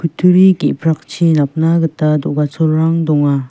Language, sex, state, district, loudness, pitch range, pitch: Garo, female, Meghalaya, West Garo Hills, -13 LUFS, 150-165 Hz, 160 Hz